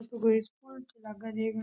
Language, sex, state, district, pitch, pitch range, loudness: Rajasthani, male, Rajasthan, Churu, 225 Hz, 220-235 Hz, -32 LUFS